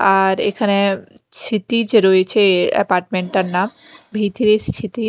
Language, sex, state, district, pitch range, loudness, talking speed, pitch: Bengali, female, Chhattisgarh, Raipur, 190-220 Hz, -16 LUFS, 85 wpm, 205 Hz